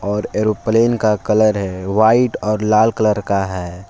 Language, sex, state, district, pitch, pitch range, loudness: Hindi, male, Jharkhand, Palamu, 105 Hz, 100-110 Hz, -16 LUFS